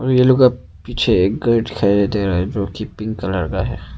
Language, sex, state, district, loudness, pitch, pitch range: Hindi, male, Arunachal Pradesh, Papum Pare, -17 LUFS, 105 Hz, 95-115 Hz